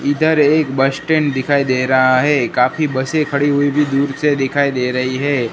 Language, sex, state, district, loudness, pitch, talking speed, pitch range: Hindi, male, Gujarat, Gandhinagar, -15 LUFS, 140 Hz, 205 wpm, 130-150 Hz